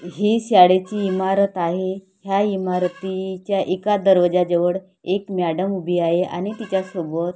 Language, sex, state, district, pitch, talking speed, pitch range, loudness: Marathi, female, Maharashtra, Gondia, 185 Hz, 115 wpm, 180-195 Hz, -20 LUFS